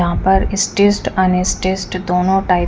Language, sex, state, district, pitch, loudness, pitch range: Hindi, female, Chandigarh, Chandigarh, 185 Hz, -16 LUFS, 180-195 Hz